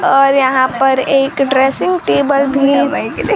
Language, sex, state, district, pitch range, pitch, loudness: Hindi, female, Bihar, Kaimur, 260-275 Hz, 270 Hz, -12 LUFS